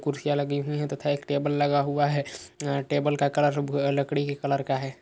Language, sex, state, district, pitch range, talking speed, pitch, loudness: Hindi, male, Uttar Pradesh, Hamirpur, 140-145 Hz, 215 wpm, 145 Hz, -26 LUFS